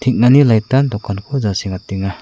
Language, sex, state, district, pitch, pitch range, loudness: Garo, male, Meghalaya, South Garo Hills, 110 Hz, 100-130 Hz, -15 LUFS